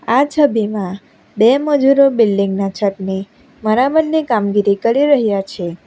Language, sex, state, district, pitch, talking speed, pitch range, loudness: Gujarati, female, Gujarat, Valsad, 220 Hz, 110 wpm, 200-275 Hz, -15 LUFS